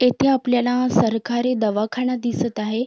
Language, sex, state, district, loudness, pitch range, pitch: Marathi, female, Maharashtra, Sindhudurg, -20 LUFS, 225-250 Hz, 245 Hz